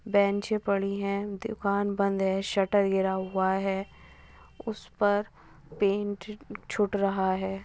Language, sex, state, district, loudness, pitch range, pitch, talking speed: Hindi, female, Uttar Pradesh, Budaun, -28 LUFS, 190-205 Hz, 200 Hz, 125 wpm